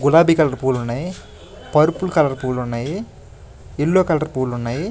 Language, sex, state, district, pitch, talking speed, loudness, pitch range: Telugu, male, Andhra Pradesh, Krishna, 145 Hz, 145 wpm, -19 LUFS, 120-165 Hz